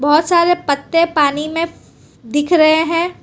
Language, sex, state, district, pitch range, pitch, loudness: Hindi, female, Gujarat, Valsad, 295-335 Hz, 320 Hz, -15 LUFS